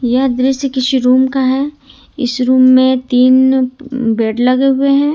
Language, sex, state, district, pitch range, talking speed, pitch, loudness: Hindi, female, Jharkhand, Ranchi, 255-270 Hz, 165 wpm, 260 Hz, -12 LUFS